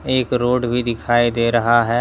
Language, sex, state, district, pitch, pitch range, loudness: Hindi, male, Jharkhand, Deoghar, 120 Hz, 120-125 Hz, -17 LUFS